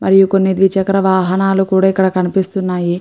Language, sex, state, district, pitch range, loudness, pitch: Telugu, female, Andhra Pradesh, Guntur, 185-195 Hz, -13 LUFS, 190 Hz